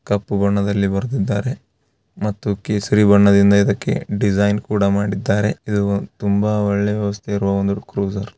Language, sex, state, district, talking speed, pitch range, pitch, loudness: Kannada, male, Karnataka, Raichur, 130 wpm, 100-105 Hz, 100 Hz, -18 LUFS